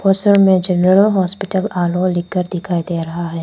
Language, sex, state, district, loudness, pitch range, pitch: Hindi, female, Arunachal Pradesh, Papum Pare, -16 LUFS, 175-195 Hz, 185 Hz